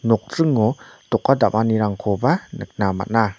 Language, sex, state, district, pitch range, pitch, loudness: Garo, male, Meghalaya, North Garo Hills, 105-125 Hz, 110 Hz, -20 LUFS